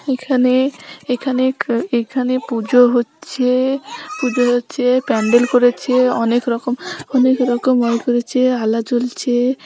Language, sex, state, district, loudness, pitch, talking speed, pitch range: Bengali, female, West Bengal, North 24 Parganas, -16 LUFS, 250 Hz, 105 wpm, 240-260 Hz